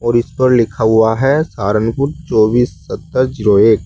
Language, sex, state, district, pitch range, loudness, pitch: Hindi, male, Uttar Pradesh, Saharanpur, 110-130 Hz, -14 LUFS, 120 Hz